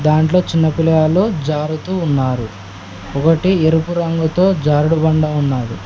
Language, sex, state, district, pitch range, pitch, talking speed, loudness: Telugu, male, Telangana, Mahabubabad, 140-165 Hz, 155 Hz, 90 wpm, -15 LUFS